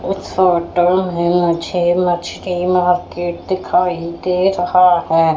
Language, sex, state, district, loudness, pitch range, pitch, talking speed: Hindi, female, Madhya Pradesh, Katni, -16 LUFS, 175-180 Hz, 180 Hz, 110 wpm